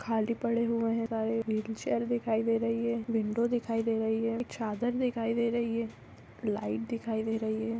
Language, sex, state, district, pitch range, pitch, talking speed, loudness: Hindi, female, Andhra Pradesh, Visakhapatnam, 220-235 Hz, 230 Hz, 210 wpm, -31 LUFS